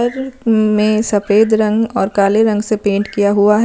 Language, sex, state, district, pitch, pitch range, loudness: Hindi, female, Himachal Pradesh, Shimla, 215 Hz, 205-225 Hz, -14 LUFS